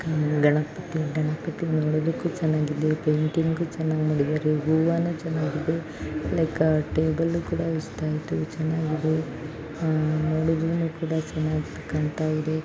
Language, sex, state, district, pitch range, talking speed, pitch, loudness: Kannada, female, Karnataka, Mysore, 155-160 Hz, 85 wpm, 155 Hz, -26 LUFS